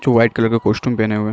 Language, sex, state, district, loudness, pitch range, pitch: Hindi, male, Bihar, Gopalganj, -17 LUFS, 105-115 Hz, 115 Hz